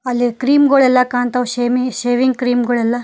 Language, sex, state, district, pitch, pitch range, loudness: Kannada, female, Karnataka, Koppal, 250 Hz, 245-255 Hz, -15 LUFS